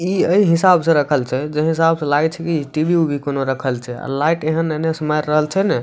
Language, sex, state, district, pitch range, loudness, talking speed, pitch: Maithili, male, Bihar, Supaul, 145-165 Hz, -17 LUFS, 290 wpm, 155 Hz